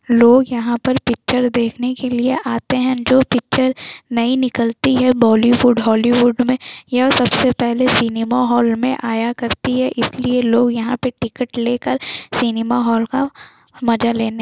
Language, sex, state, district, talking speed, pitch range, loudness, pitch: Hindi, female, Bihar, Jamui, 160 wpm, 235-255 Hz, -16 LUFS, 245 Hz